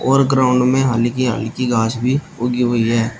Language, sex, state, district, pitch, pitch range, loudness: Hindi, male, Uttar Pradesh, Shamli, 125 Hz, 115-130 Hz, -17 LUFS